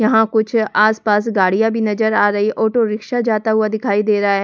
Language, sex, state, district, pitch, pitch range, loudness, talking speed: Hindi, female, Delhi, New Delhi, 220 Hz, 210-220 Hz, -16 LUFS, 230 wpm